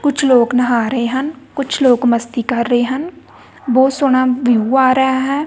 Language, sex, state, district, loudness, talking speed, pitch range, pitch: Punjabi, female, Punjab, Kapurthala, -14 LUFS, 185 wpm, 245-270 Hz, 255 Hz